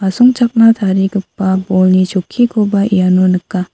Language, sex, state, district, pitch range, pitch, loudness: Garo, female, Meghalaya, South Garo Hills, 185-215 Hz, 195 Hz, -12 LUFS